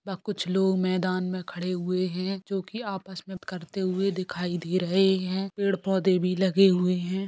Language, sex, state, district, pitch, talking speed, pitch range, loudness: Bhojpuri, female, Bihar, Saran, 185 Hz, 190 wpm, 180-195 Hz, -27 LUFS